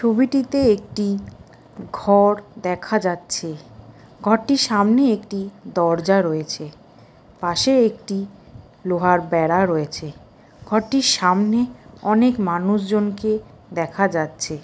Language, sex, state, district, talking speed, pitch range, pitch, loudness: Bengali, female, West Bengal, Kolkata, 85 wpm, 170-220 Hz, 200 Hz, -20 LUFS